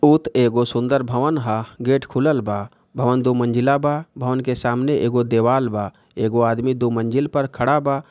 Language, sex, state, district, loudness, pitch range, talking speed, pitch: Bhojpuri, male, Bihar, Gopalganj, -20 LUFS, 120-140 Hz, 185 wpm, 125 Hz